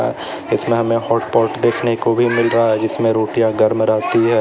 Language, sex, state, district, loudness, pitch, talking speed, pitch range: Hindi, male, Uttar Pradesh, Lalitpur, -16 LUFS, 115 Hz, 190 wpm, 110-115 Hz